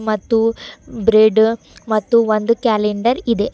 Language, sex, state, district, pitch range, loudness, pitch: Kannada, female, Karnataka, Bidar, 215-230 Hz, -16 LUFS, 225 Hz